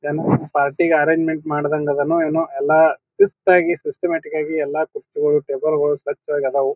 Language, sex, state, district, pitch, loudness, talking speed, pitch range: Kannada, male, Karnataka, Bijapur, 155 Hz, -19 LUFS, 140 wpm, 145-170 Hz